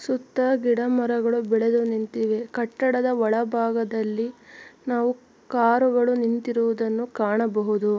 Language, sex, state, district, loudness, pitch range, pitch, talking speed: Kannada, female, Karnataka, Mysore, -23 LUFS, 225-245 Hz, 235 Hz, 75 wpm